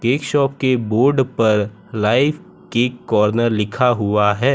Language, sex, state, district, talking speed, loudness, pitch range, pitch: Hindi, male, Gujarat, Valsad, 145 wpm, -17 LUFS, 105-135 Hz, 120 Hz